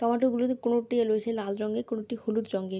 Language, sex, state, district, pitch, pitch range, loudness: Bengali, female, West Bengal, Dakshin Dinajpur, 230 Hz, 215-235 Hz, -29 LUFS